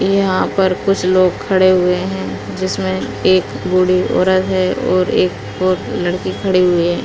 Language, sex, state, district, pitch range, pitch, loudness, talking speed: Hindi, female, Uttar Pradesh, Muzaffarnagar, 170-185 Hz, 185 Hz, -15 LUFS, 160 wpm